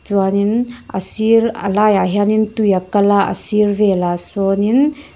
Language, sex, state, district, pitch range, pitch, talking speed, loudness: Mizo, female, Mizoram, Aizawl, 195-220 Hz, 205 Hz, 175 wpm, -15 LUFS